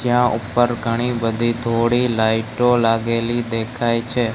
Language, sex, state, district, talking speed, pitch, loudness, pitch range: Gujarati, male, Gujarat, Gandhinagar, 140 wpm, 115 Hz, -19 LUFS, 115-120 Hz